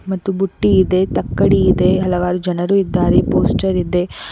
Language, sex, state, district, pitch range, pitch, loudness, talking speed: Kannada, female, Karnataka, Koppal, 180-195 Hz, 185 Hz, -16 LUFS, 140 wpm